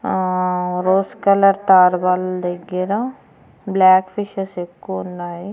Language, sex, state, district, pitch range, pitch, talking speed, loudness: Telugu, female, Andhra Pradesh, Annamaya, 180-195 Hz, 185 Hz, 85 wpm, -18 LUFS